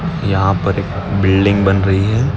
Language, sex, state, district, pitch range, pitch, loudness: Hindi, male, Maharashtra, Nagpur, 95-100 Hz, 100 Hz, -15 LUFS